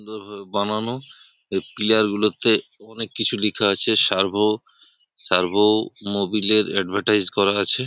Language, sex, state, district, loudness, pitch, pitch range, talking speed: Bengali, male, West Bengal, Purulia, -20 LUFS, 105 Hz, 100-110 Hz, 115 wpm